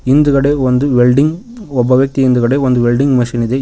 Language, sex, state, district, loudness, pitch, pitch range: Kannada, male, Karnataka, Koppal, -12 LUFS, 130 Hz, 125-140 Hz